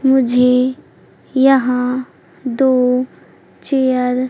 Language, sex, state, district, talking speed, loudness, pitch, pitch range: Hindi, female, Madhya Pradesh, Katni, 70 wpm, -15 LUFS, 255 Hz, 250-265 Hz